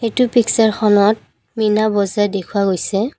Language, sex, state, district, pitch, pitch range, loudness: Assamese, female, Assam, Kamrup Metropolitan, 215 Hz, 200-225 Hz, -16 LUFS